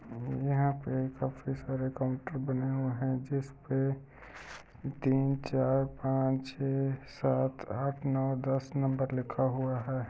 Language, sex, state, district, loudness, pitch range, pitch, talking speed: Hindi, male, Uttar Pradesh, Jyotiba Phule Nagar, -33 LUFS, 130-135 Hz, 135 Hz, 125 wpm